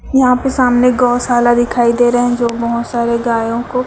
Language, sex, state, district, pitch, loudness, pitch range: Hindi, female, Chhattisgarh, Raipur, 240 Hz, -13 LUFS, 235-250 Hz